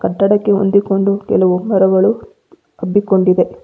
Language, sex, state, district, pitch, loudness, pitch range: Kannada, female, Karnataka, Bangalore, 200 Hz, -13 LUFS, 190-205 Hz